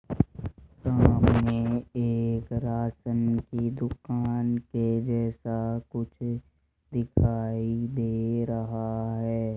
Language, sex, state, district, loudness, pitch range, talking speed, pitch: Hindi, male, Rajasthan, Jaipur, -28 LUFS, 115-120 Hz, 75 wpm, 115 Hz